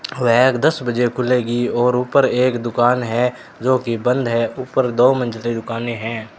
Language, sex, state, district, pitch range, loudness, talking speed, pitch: Hindi, male, Rajasthan, Bikaner, 120-125 Hz, -18 LUFS, 170 wpm, 120 Hz